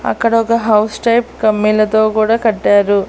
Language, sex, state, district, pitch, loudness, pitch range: Telugu, female, Andhra Pradesh, Annamaya, 215 Hz, -13 LUFS, 215-230 Hz